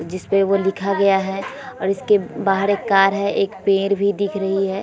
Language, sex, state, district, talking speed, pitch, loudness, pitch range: Hindi, female, Bihar, Vaishali, 210 wpm, 195 Hz, -19 LUFS, 195-200 Hz